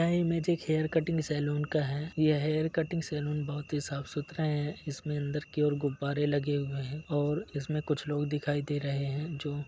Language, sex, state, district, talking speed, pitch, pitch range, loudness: Hindi, male, Bihar, Gaya, 215 wpm, 150 Hz, 145-155 Hz, -32 LUFS